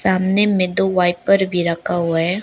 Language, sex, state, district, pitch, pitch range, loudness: Hindi, female, Arunachal Pradesh, Lower Dibang Valley, 185 Hz, 175-190 Hz, -17 LUFS